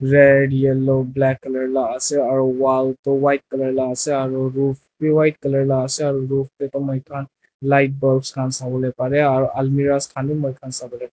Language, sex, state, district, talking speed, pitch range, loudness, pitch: Nagamese, male, Nagaland, Dimapur, 185 wpm, 130-140 Hz, -19 LUFS, 135 Hz